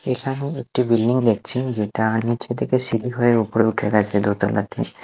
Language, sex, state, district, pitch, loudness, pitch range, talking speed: Bengali, male, Odisha, Nuapada, 115 Hz, -21 LUFS, 105-125 Hz, 165 wpm